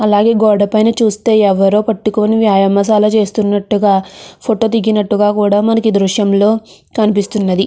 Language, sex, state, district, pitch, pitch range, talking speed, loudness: Telugu, female, Andhra Pradesh, Krishna, 210 Hz, 205-220 Hz, 140 wpm, -12 LUFS